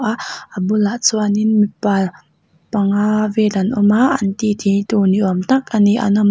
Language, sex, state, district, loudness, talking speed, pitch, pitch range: Mizo, female, Mizoram, Aizawl, -16 LUFS, 210 wpm, 210 Hz, 200-220 Hz